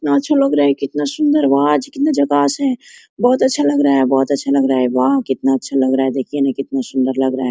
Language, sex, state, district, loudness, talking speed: Hindi, female, Jharkhand, Sahebganj, -16 LUFS, 280 wpm